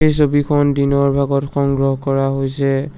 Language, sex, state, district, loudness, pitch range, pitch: Assamese, male, Assam, Sonitpur, -16 LUFS, 135-145 Hz, 140 Hz